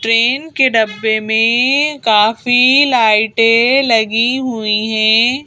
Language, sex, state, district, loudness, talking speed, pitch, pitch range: Hindi, female, Madhya Pradesh, Bhopal, -12 LUFS, 100 wpm, 230 Hz, 220-260 Hz